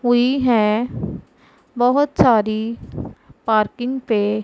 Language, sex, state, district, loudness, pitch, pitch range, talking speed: Hindi, female, Punjab, Pathankot, -18 LUFS, 235 Hz, 215-250 Hz, 80 wpm